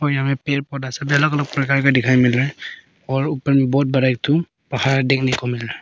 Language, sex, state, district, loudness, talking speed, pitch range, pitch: Hindi, male, Arunachal Pradesh, Papum Pare, -18 LUFS, 280 wpm, 130-140 Hz, 135 Hz